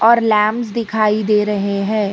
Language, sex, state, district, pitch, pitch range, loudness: Hindi, female, Karnataka, Bangalore, 215 Hz, 210-225 Hz, -16 LUFS